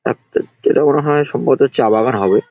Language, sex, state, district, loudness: Bengali, male, West Bengal, Jalpaiguri, -15 LUFS